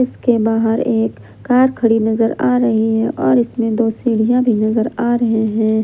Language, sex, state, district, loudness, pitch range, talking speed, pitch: Hindi, female, Jharkhand, Ranchi, -15 LUFS, 225-245 Hz, 185 wpm, 230 Hz